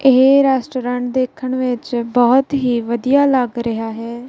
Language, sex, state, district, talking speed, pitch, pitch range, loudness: Punjabi, female, Punjab, Kapurthala, 140 wpm, 250 Hz, 240-265 Hz, -16 LUFS